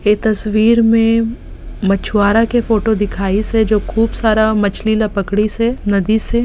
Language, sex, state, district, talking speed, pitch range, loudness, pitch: Chhattisgarhi, female, Chhattisgarh, Bastar, 150 wpm, 205-225 Hz, -14 LUFS, 220 Hz